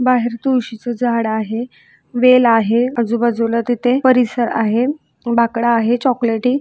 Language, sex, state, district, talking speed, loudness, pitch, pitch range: Marathi, female, Maharashtra, Sindhudurg, 110 wpm, -16 LUFS, 240 Hz, 230-250 Hz